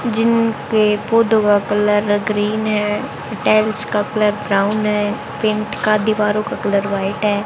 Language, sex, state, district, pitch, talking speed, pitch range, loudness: Hindi, female, Haryana, Jhajjar, 210 Hz, 130 wpm, 205-215 Hz, -17 LUFS